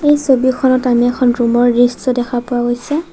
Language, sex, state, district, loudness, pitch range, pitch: Assamese, female, Assam, Sonitpur, -14 LUFS, 245-260 Hz, 245 Hz